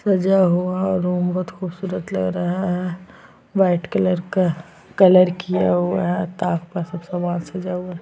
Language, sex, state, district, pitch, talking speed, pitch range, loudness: Hindi, female, Chhattisgarh, Sukma, 180 Hz, 165 wpm, 175-185 Hz, -20 LUFS